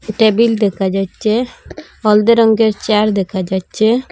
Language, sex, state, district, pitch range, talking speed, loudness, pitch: Bengali, female, Assam, Hailakandi, 195-225 Hz, 115 wpm, -14 LUFS, 215 Hz